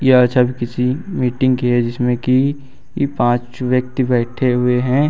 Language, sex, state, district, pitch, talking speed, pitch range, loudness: Hindi, male, Uttar Pradesh, Lucknow, 125 Hz, 165 wpm, 125-130 Hz, -17 LUFS